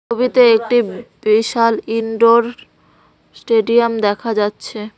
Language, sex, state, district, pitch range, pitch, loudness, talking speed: Bengali, female, West Bengal, Cooch Behar, 220-235 Hz, 230 Hz, -15 LUFS, 85 wpm